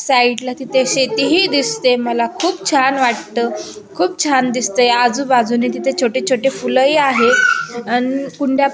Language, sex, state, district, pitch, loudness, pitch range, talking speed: Marathi, female, Maharashtra, Aurangabad, 260 Hz, -15 LUFS, 245-275 Hz, 150 wpm